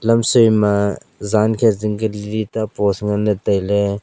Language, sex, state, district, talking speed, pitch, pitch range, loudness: Wancho, male, Arunachal Pradesh, Longding, 165 wpm, 105 Hz, 100-110 Hz, -17 LUFS